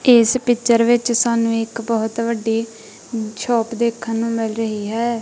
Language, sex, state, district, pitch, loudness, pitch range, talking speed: Punjabi, female, Punjab, Kapurthala, 230 Hz, -19 LUFS, 225-235 Hz, 150 wpm